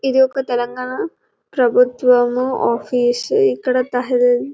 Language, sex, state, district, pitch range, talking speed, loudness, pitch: Telugu, female, Telangana, Karimnagar, 245-265 Hz, 105 wpm, -17 LUFS, 250 Hz